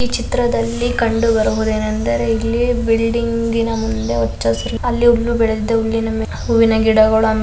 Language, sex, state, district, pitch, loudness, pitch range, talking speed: Kannada, female, Karnataka, Belgaum, 225 Hz, -16 LUFS, 220-235 Hz, 90 wpm